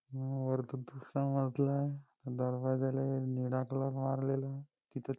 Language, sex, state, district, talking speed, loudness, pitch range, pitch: Marathi, male, Maharashtra, Nagpur, 125 wpm, -36 LUFS, 130-135 Hz, 135 Hz